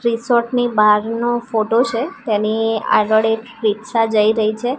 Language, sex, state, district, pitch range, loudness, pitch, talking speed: Gujarati, female, Gujarat, Gandhinagar, 215-235 Hz, -17 LUFS, 225 Hz, 150 wpm